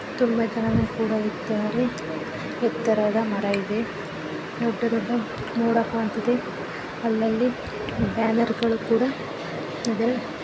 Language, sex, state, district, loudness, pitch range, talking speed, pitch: Kannada, female, Karnataka, Bellary, -25 LUFS, 220-235 Hz, 100 wpm, 230 Hz